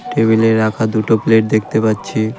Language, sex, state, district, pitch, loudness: Bengali, male, West Bengal, Cooch Behar, 110 Hz, -14 LUFS